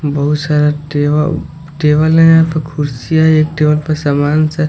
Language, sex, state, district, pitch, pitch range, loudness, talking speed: Hindi, male, Odisha, Sambalpur, 150 Hz, 150-155 Hz, -12 LUFS, 165 wpm